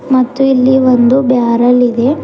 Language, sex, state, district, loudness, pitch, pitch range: Kannada, female, Karnataka, Bidar, -10 LUFS, 255 Hz, 245-265 Hz